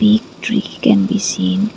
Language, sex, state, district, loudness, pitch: English, female, Assam, Kamrup Metropolitan, -16 LUFS, 210 Hz